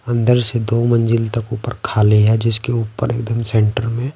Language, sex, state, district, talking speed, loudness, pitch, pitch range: Hindi, male, Bihar, Patna, 200 wpm, -17 LUFS, 115 Hz, 115-120 Hz